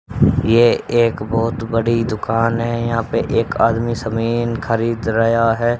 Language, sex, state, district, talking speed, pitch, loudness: Hindi, male, Haryana, Rohtak, 145 wpm, 115 Hz, -17 LUFS